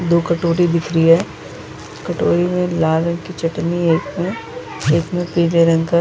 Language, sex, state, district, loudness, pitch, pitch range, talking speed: Hindi, female, Chhattisgarh, Balrampur, -17 LUFS, 170 Hz, 165-175 Hz, 200 wpm